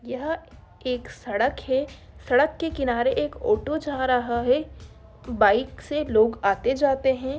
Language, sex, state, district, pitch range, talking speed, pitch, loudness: Hindi, female, Bihar, Darbhanga, 240-295 Hz, 145 wpm, 265 Hz, -24 LUFS